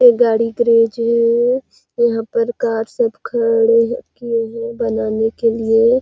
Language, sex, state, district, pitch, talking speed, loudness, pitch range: Hindi, female, Chhattisgarh, Sarguja, 230 Hz, 150 wpm, -16 LUFS, 225-235 Hz